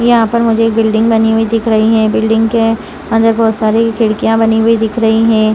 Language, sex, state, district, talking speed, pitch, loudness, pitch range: Hindi, female, Chhattisgarh, Rajnandgaon, 215 wpm, 225 Hz, -11 LUFS, 220-225 Hz